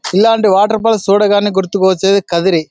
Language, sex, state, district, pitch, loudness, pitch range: Telugu, male, Andhra Pradesh, Anantapur, 200 Hz, -12 LUFS, 190-210 Hz